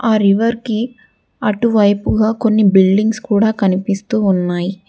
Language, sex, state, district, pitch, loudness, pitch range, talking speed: Telugu, female, Telangana, Hyderabad, 210 Hz, -15 LUFS, 195-220 Hz, 100 wpm